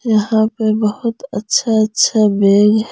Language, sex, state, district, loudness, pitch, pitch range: Hindi, female, Jharkhand, Garhwa, -14 LUFS, 220 Hz, 210-225 Hz